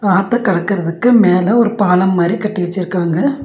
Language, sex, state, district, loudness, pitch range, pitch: Tamil, female, Tamil Nadu, Nilgiris, -14 LUFS, 180-220 Hz, 190 Hz